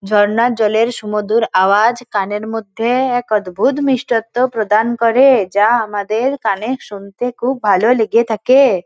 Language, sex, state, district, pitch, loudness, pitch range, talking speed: Bengali, female, West Bengal, Purulia, 225 Hz, -15 LUFS, 210-245 Hz, 135 wpm